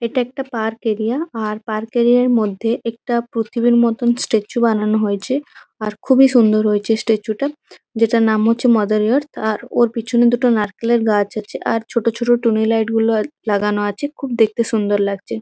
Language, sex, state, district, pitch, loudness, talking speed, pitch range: Bengali, female, West Bengal, Kolkata, 230 Hz, -17 LUFS, 185 wpm, 215-240 Hz